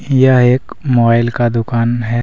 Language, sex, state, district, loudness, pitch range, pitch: Hindi, male, Jharkhand, Deoghar, -13 LUFS, 115-125 Hz, 120 Hz